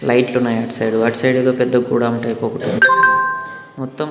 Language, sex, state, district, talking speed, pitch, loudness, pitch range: Telugu, male, Andhra Pradesh, Annamaya, 190 wpm, 125 Hz, -16 LUFS, 120-190 Hz